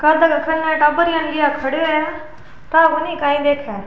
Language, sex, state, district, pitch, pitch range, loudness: Rajasthani, female, Rajasthan, Churu, 315 Hz, 290-320 Hz, -16 LUFS